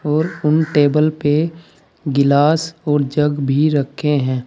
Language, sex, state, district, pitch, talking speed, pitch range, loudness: Hindi, male, Uttar Pradesh, Saharanpur, 150 Hz, 135 wpm, 145-155 Hz, -16 LUFS